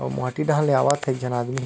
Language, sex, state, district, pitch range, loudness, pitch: Chhattisgarhi, male, Chhattisgarh, Rajnandgaon, 125-145 Hz, -22 LUFS, 130 Hz